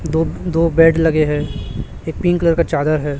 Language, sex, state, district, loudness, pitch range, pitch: Hindi, male, Chhattisgarh, Raipur, -16 LUFS, 150-165 Hz, 160 Hz